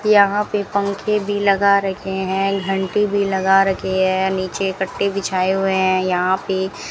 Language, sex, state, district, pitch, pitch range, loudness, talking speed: Hindi, female, Rajasthan, Bikaner, 195 Hz, 190-200 Hz, -18 LUFS, 175 wpm